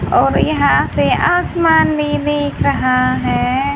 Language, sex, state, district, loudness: Hindi, female, Haryana, Charkhi Dadri, -14 LUFS